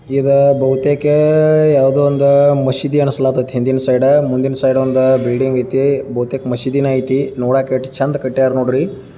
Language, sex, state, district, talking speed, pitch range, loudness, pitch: Kannada, male, Karnataka, Dharwad, 135 wpm, 130-140 Hz, -14 LUFS, 135 Hz